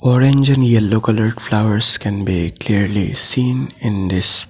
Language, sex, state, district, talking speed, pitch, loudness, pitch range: English, male, Assam, Sonitpur, 145 wpm, 110 Hz, -16 LUFS, 100-125 Hz